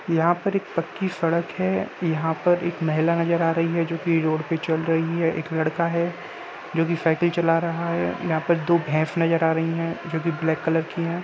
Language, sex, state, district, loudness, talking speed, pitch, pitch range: Hindi, male, Uttar Pradesh, Jalaun, -23 LUFS, 240 wpm, 165 Hz, 160-170 Hz